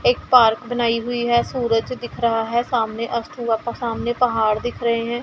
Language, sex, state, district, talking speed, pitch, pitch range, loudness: Hindi, female, Punjab, Pathankot, 195 wpm, 235 Hz, 230-240 Hz, -20 LUFS